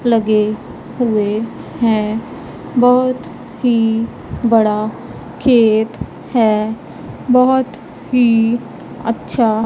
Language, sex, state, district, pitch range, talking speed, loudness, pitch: Hindi, female, Punjab, Pathankot, 220-245 Hz, 70 wpm, -16 LUFS, 230 Hz